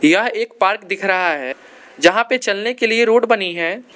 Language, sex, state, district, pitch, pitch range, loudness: Hindi, male, Arunachal Pradesh, Lower Dibang Valley, 230 Hz, 190-235 Hz, -16 LUFS